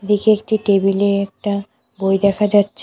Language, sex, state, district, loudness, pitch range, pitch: Bengali, female, West Bengal, Cooch Behar, -17 LUFS, 195-210 Hz, 200 Hz